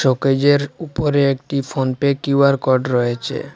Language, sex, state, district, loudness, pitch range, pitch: Bengali, male, Assam, Hailakandi, -18 LUFS, 130-140 Hz, 140 Hz